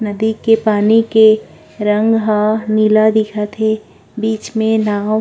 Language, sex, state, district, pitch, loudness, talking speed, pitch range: Chhattisgarhi, female, Chhattisgarh, Korba, 215 Hz, -14 LUFS, 140 wpm, 215-220 Hz